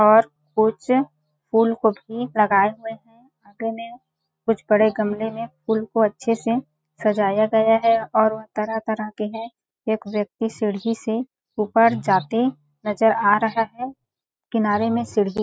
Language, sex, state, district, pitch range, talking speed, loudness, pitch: Hindi, female, Chhattisgarh, Balrampur, 210-230 Hz, 150 wpm, -21 LUFS, 220 Hz